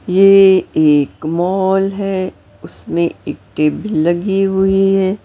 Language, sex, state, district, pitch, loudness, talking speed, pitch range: Hindi, female, Maharashtra, Mumbai Suburban, 190 Hz, -14 LUFS, 115 wpm, 165-195 Hz